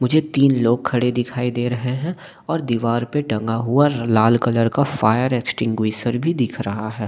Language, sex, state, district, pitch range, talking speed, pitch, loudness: Hindi, male, Delhi, New Delhi, 115-135 Hz, 185 wpm, 120 Hz, -19 LUFS